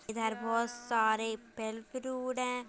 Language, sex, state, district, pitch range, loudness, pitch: Hindi, female, Uttar Pradesh, Budaun, 220-250 Hz, -34 LUFS, 230 Hz